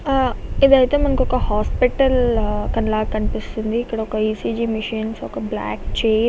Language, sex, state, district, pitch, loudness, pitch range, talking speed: Telugu, female, Andhra Pradesh, Visakhapatnam, 225 Hz, -20 LUFS, 220-255 Hz, 145 wpm